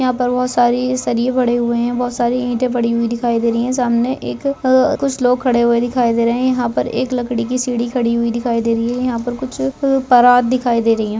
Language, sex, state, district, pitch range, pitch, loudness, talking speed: Hindi, female, Rajasthan, Nagaur, 235-255 Hz, 245 Hz, -16 LUFS, 250 wpm